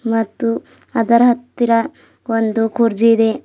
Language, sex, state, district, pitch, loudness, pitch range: Kannada, female, Karnataka, Bidar, 230 Hz, -16 LUFS, 225-235 Hz